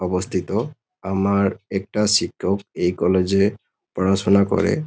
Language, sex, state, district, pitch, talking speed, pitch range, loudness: Bengali, male, West Bengal, Kolkata, 95 Hz, 125 wpm, 90-100 Hz, -20 LUFS